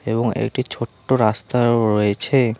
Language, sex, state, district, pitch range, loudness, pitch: Bengali, male, West Bengal, Alipurduar, 110-130 Hz, -19 LUFS, 115 Hz